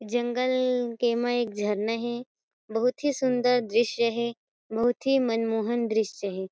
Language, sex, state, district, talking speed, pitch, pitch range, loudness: Chhattisgarhi, female, Chhattisgarh, Kabirdham, 145 wpm, 235 Hz, 225-245 Hz, -27 LUFS